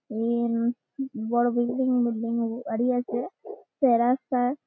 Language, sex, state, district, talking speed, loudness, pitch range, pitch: Bengali, female, West Bengal, Malda, 75 wpm, -26 LUFS, 235-250 Hz, 240 Hz